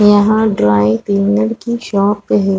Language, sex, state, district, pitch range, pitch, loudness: Hindi, female, Chhattisgarh, Raigarh, 195-215 Hz, 205 Hz, -13 LUFS